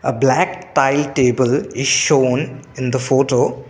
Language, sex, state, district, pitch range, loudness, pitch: English, male, Assam, Kamrup Metropolitan, 130-140 Hz, -16 LUFS, 130 Hz